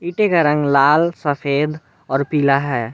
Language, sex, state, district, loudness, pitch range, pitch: Hindi, male, Jharkhand, Garhwa, -17 LUFS, 140-155 Hz, 145 Hz